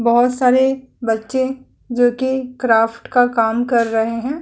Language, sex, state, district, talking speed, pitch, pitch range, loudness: Hindi, female, Uttar Pradesh, Budaun, 150 wpm, 245 Hz, 230-260 Hz, -17 LUFS